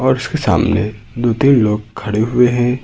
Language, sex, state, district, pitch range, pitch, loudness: Hindi, male, Uttar Pradesh, Lucknow, 105-130 Hz, 120 Hz, -15 LUFS